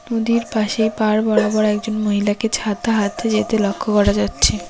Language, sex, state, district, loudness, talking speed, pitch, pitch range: Bengali, female, West Bengal, Cooch Behar, -18 LUFS, 155 wpm, 215 Hz, 205-220 Hz